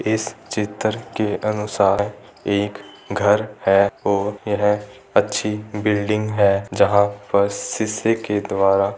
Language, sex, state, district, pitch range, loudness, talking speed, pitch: Hindi, male, Rajasthan, Churu, 100-105 Hz, -20 LUFS, 115 wpm, 105 Hz